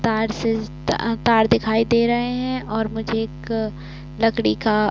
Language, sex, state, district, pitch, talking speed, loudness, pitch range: Hindi, female, Uttar Pradesh, Varanasi, 225 Hz, 160 wpm, -21 LUFS, 215-230 Hz